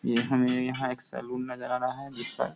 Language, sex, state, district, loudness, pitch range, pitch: Hindi, male, Bihar, Sitamarhi, -29 LUFS, 125-130 Hz, 125 Hz